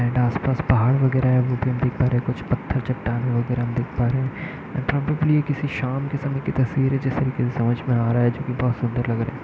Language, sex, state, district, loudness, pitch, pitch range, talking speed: Hindi, male, Bihar, Gaya, -22 LUFS, 130 Hz, 120-135 Hz, 285 wpm